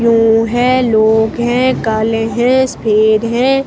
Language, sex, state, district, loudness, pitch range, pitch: Hindi, female, Himachal Pradesh, Shimla, -12 LUFS, 220-250 Hz, 230 Hz